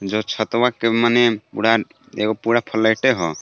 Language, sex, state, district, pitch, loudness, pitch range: Bhojpuri, male, Jharkhand, Palamu, 110 Hz, -18 LUFS, 110-120 Hz